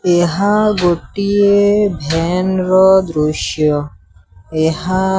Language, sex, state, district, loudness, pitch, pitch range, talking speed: Odia, male, Odisha, Sambalpur, -14 LUFS, 180 Hz, 155-195 Hz, 80 wpm